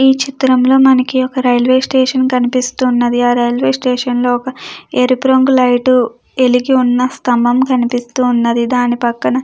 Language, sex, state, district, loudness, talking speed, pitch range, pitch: Telugu, female, Andhra Pradesh, Krishna, -13 LUFS, 145 wpm, 245-260 Hz, 255 Hz